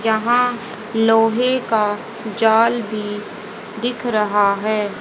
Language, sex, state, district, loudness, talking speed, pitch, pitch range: Hindi, female, Haryana, Charkhi Dadri, -18 LUFS, 95 wpm, 225 Hz, 210-230 Hz